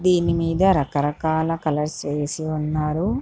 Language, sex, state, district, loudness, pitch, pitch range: Telugu, female, Andhra Pradesh, Guntur, -22 LUFS, 160 Hz, 150-170 Hz